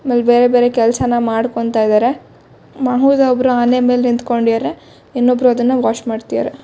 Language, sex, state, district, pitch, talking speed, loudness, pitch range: Kannada, female, Karnataka, Shimoga, 245 Hz, 125 wpm, -14 LUFS, 230-250 Hz